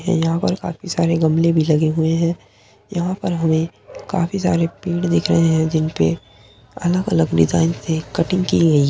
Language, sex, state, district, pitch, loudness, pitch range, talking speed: Hindi, female, Uttar Pradesh, Muzaffarnagar, 165 Hz, -18 LUFS, 145-175 Hz, 175 wpm